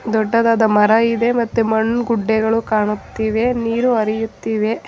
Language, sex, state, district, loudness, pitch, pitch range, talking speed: Kannada, female, Karnataka, Bangalore, -17 LUFS, 225 Hz, 220-230 Hz, 110 wpm